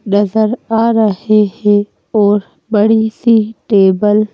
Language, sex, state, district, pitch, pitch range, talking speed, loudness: Hindi, female, Madhya Pradesh, Bhopal, 215 Hz, 205-220 Hz, 110 wpm, -12 LUFS